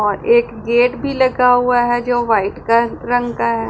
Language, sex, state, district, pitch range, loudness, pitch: Hindi, female, Punjab, Pathankot, 225-245 Hz, -15 LUFS, 240 Hz